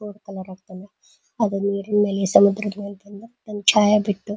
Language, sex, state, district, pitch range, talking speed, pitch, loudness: Kannada, female, Karnataka, Dharwad, 200-210 Hz, 165 wpm, 205 Hz, -19 LUFS